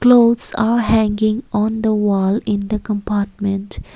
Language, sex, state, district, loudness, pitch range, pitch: English, female, Assam, Kamrup Metropolitan, -17 LUFS, 205-225 Hz, 215 Hz